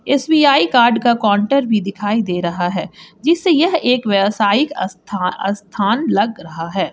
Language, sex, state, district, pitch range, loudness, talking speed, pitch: Hindi, female, Jharkhand, Garhwa, 195-265 Hz, -16 LUFS, 155 wpm, 205 Hz